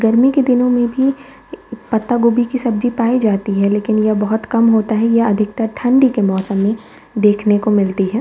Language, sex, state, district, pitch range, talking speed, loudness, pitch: Hindi, female, Uttar Pradesh, Varanasi, 210-245 Hz, 205 wpm, -15 LUFS, 225 Hz